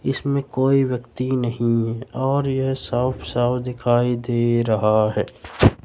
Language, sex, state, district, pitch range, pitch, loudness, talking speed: Hindi, male, Madhya Pradesh, Katni, 120-130 Hz, 125 Hz, -21 LUFS, 135 wpm